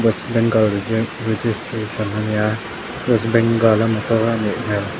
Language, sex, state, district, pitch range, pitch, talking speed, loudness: Mizo, male, Mizoram, Aizawl, 110-115 Hz, 110 Hz, 170 wpm, -19 LUFS